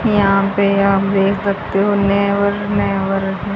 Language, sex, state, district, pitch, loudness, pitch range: Hindi, female, Haryana, Rohtak, 200 Hz, -16 LUFS, 195-200 Hz